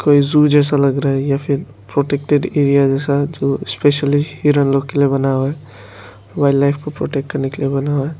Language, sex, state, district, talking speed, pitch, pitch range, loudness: Hindi, male, Arunachal Pradesh, Lower Dibang Valley, 210 wpm, 140 Hz, 135-145 Hz, -16 LUFS